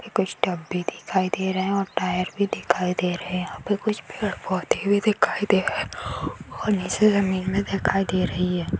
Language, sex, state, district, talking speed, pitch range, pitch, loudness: Hindi, female, Maharashtra, Aurangabad, 205 wpm, 180-200 Hz, 190 Hz, -24 LUFS